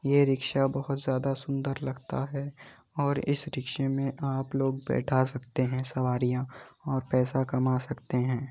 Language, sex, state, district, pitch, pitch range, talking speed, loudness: Hindi, male, Uttar Pradesh, Muzaffarnagar, 135 Hz, 130-140 Hz, 160 wpm, -30 LUFS